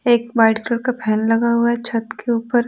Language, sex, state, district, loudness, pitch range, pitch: Hindi, female, Bihar, Patna, -18 LUFS, 225-240 Hz, 235 Hz